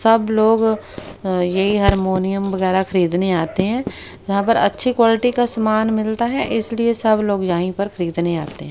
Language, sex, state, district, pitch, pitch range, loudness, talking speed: Hindi, female, Haryana, Rohtak, 200 Hz, 185-225 Hz, -18 LUFS, 170 wpm